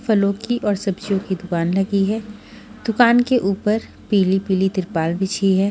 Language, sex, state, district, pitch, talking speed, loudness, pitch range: Hindi, female, Haryana, Charkhi Dadri, 200 Hz, 170 wpm, -19 LUFS, 190-220 Hz